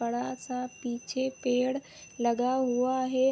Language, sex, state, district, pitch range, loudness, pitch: Hindi, female, Chhattisgarh, Bilaspur, 245-260 Hz, -30 LUFS, 255 Hz